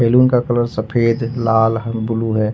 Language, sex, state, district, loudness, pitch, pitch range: Hindi, male, Jharkhand, Ranchi, -17 LUFS, 115 Hz, 110-120 Hz